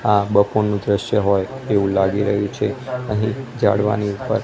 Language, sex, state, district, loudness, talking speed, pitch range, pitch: Gujarati, male, Gujarat, Gandhinagar, -19 LUFS, 150 wpm, 100-110 Hz, 105 Hz